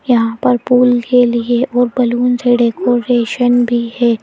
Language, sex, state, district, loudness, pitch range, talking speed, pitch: Hindi, female, Madhya Pradesh, Bhopal, -13 LUFS, 235-245 Hz, 155 wpm, 245 Hz